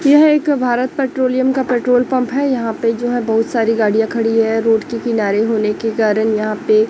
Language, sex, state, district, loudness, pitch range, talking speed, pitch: Hindi, female, Chhattisgarh, Raipur, -16 LUFS, 220-255 Hz, 215 wpm, 230 Hz